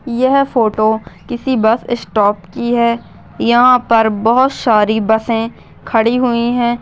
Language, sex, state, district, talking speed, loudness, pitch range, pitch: Hindi, female, Maharashtra, Aurangabad, 130 wpm, -14 LUFS, 220-245 Hz, 235 Hz